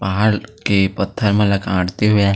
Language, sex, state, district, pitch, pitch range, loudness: Chhattisgarhi, male, Chhattisgarh, Sarguja, 100 Hz, 95-105 Hz, -17 LUFS